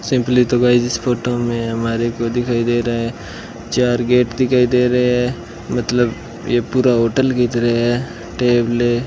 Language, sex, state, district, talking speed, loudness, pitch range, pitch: Hindi, male, Rajasthan, Bikaner, 180 wpm, -17 LUFS, 115-125 Hz, 120 Hz